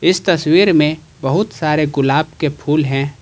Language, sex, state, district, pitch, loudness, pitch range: Hindi, male, Jharkhand, Ranchi, 150 Hz, -15 LUFS, 145-155 Hz